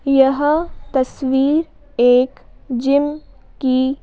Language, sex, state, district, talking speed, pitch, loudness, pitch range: Hindi, female, Madhya Pradesh, Bhopal, 75 wpm, 270 Hz, -17 LUFS, 260-290 Hz